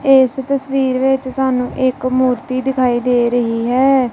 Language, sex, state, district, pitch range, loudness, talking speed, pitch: Punjabi, female, Punjab, Kapurthala, 250-265 Hz, -16 LUFS, 145 wpm, 255 Hz